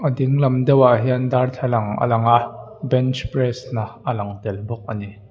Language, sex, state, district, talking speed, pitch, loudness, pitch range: Mizo, male, Mizoram, Aizawl, 180 wpm, 120 Hz, -19 LUFS, 110-130 Hz